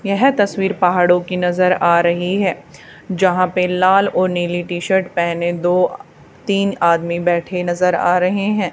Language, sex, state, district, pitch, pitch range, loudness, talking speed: Hindi, female, Haryana, Charkhi Dadri, 180 Hz, 175-190 Hz, -16 LUFS, 170 wpm